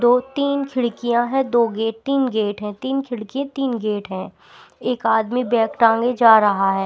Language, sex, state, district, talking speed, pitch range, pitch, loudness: Hindi, female, Bihar, Patna, 175 wpm, 220-260 Hz, 235 Hz, -19 LUFS